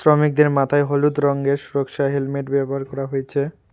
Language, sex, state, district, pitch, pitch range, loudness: Bengali, male, West Bengal, Alipurduar, 140 Hz, 140-145 Hz, -20 LUFS